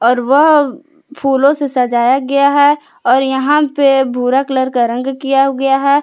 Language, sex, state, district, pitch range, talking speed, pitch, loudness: Hindi, female, Jharkhand, Palamu, 260-285 Hz, 170 wpm, 270 Hz, -13 LUFS